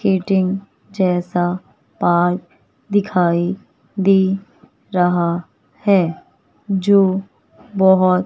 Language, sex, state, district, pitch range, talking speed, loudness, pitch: Hindi, female, Himachal Pradesh, Shimla, 175-195 Hz, 65 wpm, -18 LUFS, 190 Hz